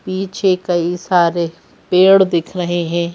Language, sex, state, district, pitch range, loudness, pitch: Hindi, female, Madhya Pradesh, Bhopal, 170-185 Hz, -15 LUFS, 175 Hz